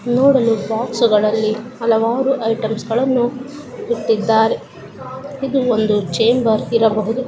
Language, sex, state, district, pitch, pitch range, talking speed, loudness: Kannada, female, Karnataka, Dharwad, 230 Hz, 220-250 Hz, 80 wpm, -17 LUFS